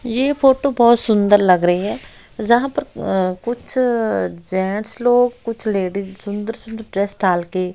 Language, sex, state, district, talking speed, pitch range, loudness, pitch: Hindi, female, Haryana, Rohtak, 155 wpm, 190-240 Hz, -18 LUFS, 215 Hz